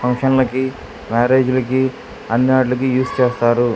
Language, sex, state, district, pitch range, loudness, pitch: Telugu, male, Andhra Pradesh, Krishna, 125-130 Hz, -17 LUFS, 130 Hz